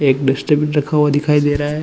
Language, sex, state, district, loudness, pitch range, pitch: Hindi, male, Chhattisgarh, Bilaspur, -16 LUFS, 145-150 Hz, 145 Hz